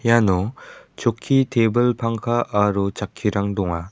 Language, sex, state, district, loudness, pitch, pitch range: Garo, male, Meghalaya, West Garo Hills, -21 LUFS, 110 Hz, 100-120 Hz